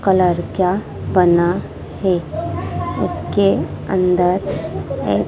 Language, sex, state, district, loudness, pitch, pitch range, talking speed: Hindi, female, Madhya Pradesh, Dhar, -18 LUFS, 185 Hz, 180-190 Hz, 80 wpm